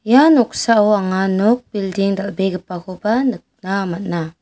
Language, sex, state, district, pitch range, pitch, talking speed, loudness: Garo, female, Meghalaya, West Garo Hills, 185-220 Hz, 195 Hz, 110 wpm, -17 LUFS